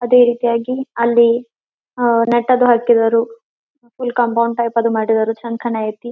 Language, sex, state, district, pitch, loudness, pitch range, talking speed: Kannada, female, Karnataka, Belgaum, 235 Hz, -16 LUFS, 230-240 Hz, 125 wpm